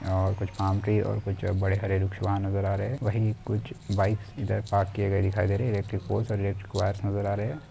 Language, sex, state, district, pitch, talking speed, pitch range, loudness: Hindi, male, Chhattisgarh, Raigarh, 100 Hz, 255 wpm, 100-105 Hz, -28 LUFS